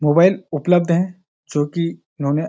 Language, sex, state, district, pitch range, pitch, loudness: Hindi, male, Uttarakhand, Uttarkashi, 150-180 Hz, 170 Hz, -19 LUFS